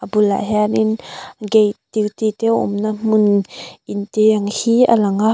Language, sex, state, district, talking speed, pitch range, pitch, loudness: Mizo, female, Mizoram, Aizawl, 180 wpm, 205-220 Hz, 215 Hz, -17 LUFS